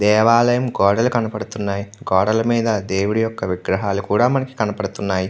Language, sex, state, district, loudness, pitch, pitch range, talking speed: Telugu, male, Andhra Pradesh, Krishna, -19 LUFS, 105 Hz, 100-115 Hz, 100 wpm